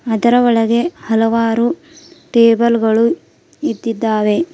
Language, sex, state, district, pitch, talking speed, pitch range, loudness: Kannada, female, Karnataka, Bidar, 230 Hz, 80 wpm, 225-245 Hz, -14 LUFS